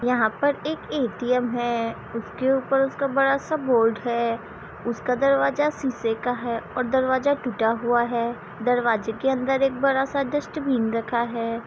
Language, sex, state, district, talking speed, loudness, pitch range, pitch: Hindi, female, Bihar, Saran, 160 wpm, -24 LUFS, 230-270 Hz, 245 Hz